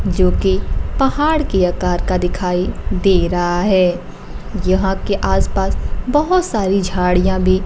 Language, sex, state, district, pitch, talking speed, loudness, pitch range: Hindi, female, Bihar, Kaimur, 185 Hz, 135 wpm, -17 LUFS, 180-200 Hz